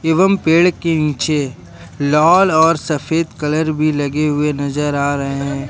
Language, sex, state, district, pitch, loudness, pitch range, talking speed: Hindi, male, Jharkhand, Ranchi, 150 Hz, -15 LUFS, 140-160 Hz, 160 wpm